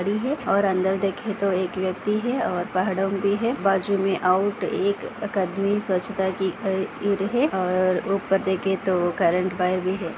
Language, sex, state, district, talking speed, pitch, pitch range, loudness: Hindi, female, Maharashtra, Solapur, 170 wpm, 195 Hz, 185-200 Hz, -23 LUFS